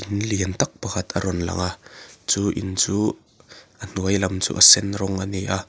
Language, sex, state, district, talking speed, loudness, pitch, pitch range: Mizo, male, Mizoram, Aizawl, 200 wpm, -20 LUFS, 95 Hz, 95-100 Hz